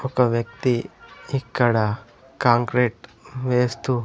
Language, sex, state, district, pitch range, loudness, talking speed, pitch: Telugu, male, Andhra Pradesh, Sri Satya Sai, 120-130 Hz, -22 LUFS, 75 wpm, 125 Hz